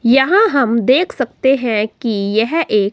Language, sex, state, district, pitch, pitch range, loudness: Hindi, female, Himachal Pradesh, Shimla, 240 Hz, 220-275 Hz, -15 LUFS